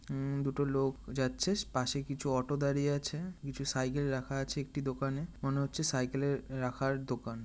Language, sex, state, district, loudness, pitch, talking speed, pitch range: Bengali, male, West Bengal, North 24 Parganas, -35 LUFS, 135 Hz, 160 wpm, 130-140 Hz